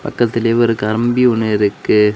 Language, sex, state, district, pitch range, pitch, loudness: Tamil, male, Tamil Nadu, Kanyakumari, 105-120 Hz, 115 Hz, -15 LUFS